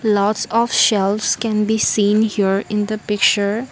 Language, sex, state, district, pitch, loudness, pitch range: English, female, Assam, Kamrup Metropolitan, 210 Hz, -17 LUFS, 205-220 Hz